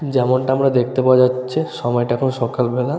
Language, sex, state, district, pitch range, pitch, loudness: Bengali, male, West Bengal, Paschim Medinipur, 125-130 Hz, 130 Hz, -17 LUFS